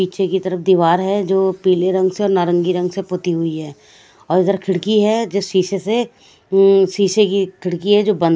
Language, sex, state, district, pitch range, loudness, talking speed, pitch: Hindi, female, Punjab, Kapurthala, 180-195 Hz, -16 LUFS, 215 wpm, 190 Hz